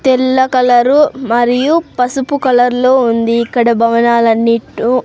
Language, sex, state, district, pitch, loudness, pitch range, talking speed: Telugu, male, Andhra Pradesh, Sri Satya Sai, 245 Hz, -11 LUFS, 235-260 Hz, 120 wpm